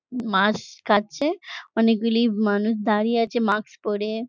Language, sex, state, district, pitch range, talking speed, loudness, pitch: Bengali, female, West Bengal, Jhargram, 210-230 Hz, 125 wpm, -22 LUFS, 220 Hz